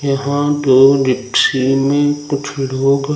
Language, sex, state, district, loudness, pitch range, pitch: Hindi, male, Madhya Pradesh, Umaria, -14 LUFS, 135-145 Hz, 140 Hz